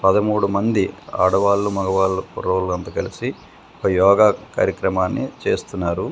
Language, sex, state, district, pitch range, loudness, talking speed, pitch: Telugu, male, Telangana, Komaram Bheem, 95-100 Hz, -20 LUFS, 110 wpm, 95 Hz